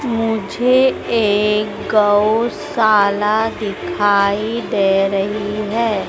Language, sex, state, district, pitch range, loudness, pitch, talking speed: Hindi, female, Madhya Pradesh, Dhar, 205-225 Hz, -16 LUFS, 210 Hz, 70 wpm